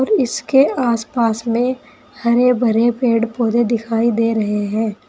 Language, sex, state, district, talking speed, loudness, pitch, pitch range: Hindi, female, Uttar Pradesh, Saharanpur, 130 wpm, -17 LUFS, 235 Hz, 225-250 Hz